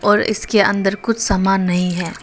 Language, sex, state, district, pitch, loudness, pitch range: Hindi, female, Arunachal Pradesh, Papum Pare, 200 Hz, -17 LUFS, 190-215 Hz